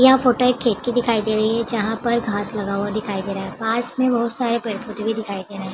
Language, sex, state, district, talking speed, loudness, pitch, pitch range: Hindi, female, Bihar, Begusarai, 295 wpm, -21 LUFS, 225 Hz, 205-240 Hz